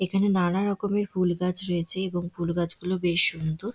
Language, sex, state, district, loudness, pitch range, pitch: Bengali, female, West Bengal, Dakshin Dinajpur, -26 LUFS, 175-190 Hz, 180 Hz